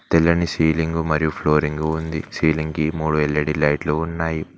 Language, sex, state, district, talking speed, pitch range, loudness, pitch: Telugu, male, Telangana, Mahabubabad, 145 wpm, 75-80 Hz, -20 LUFS, 80 Hz